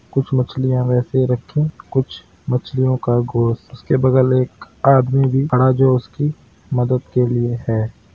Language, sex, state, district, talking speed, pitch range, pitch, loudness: Hindi, male, Bihar, Madhepura, 145 wpm, 120-130 Hz, 125 Hz, -18 LUFS